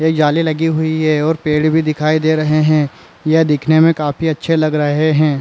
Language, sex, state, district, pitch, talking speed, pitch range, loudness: Chhattisgarhi, male, Chhattisgarh, Raigarh, 155 Hz, 220 wpm, 150-160 Hz, -14 LUFS